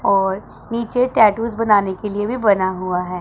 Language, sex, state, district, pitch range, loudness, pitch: Hindi, female, Punjab, Pathankot, 190-230 Hz, -18 LUFS, 205 Hz